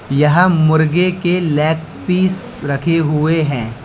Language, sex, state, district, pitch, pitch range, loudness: Hindi, male, Uttar Pradesh, Lalitpur, 160 Hz, 150-175 Hz, -15 LUFS